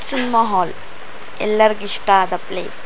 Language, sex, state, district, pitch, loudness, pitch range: Kannada, female, Karnataka, Raichur, 215 Hz, -17 LUFS, 200-230 Hz